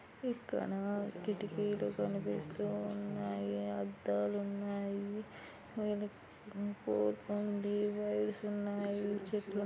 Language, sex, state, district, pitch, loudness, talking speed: Telugu, female, Andhra Pradesh, Anantapur, 205 Hz, -38 LUFS, 50 wpm